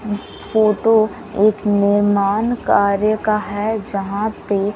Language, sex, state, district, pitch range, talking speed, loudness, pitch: Hindi, female, Bihar, West Champaran, 200-215 Hz, 115 wpm, -17 LUFS, 210 Hz